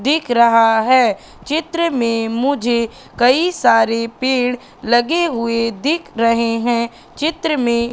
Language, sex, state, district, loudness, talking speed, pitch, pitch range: Hindi, female, Madhya Pradesh, Katni, -16 LUFS, 120 wpm, 240 Hz, 230-280 Hz